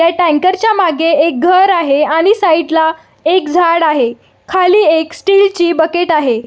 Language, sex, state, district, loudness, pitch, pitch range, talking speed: Marathi, female, Maharashtra, Solapur, -11 LUFS, 335 Hz, 315-365 Hz, 185 wpm